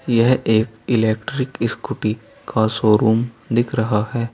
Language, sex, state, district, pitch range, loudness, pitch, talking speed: Hindi, male, Uttar Pradesh, Saharanpur, 110-120 Hz, -19 LUFS, 115 Hz, 125 wpm